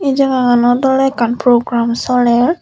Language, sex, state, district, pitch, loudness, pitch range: Chakma, female, Tripura, Unakoti, 245 Hz, -13 LUFS, 240-265 Hz